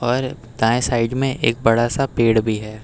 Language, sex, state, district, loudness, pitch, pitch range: Hindi, male, Uttar Pradesh, Lucknow, -19 LUFS, 120 Hz, 115-130 Hz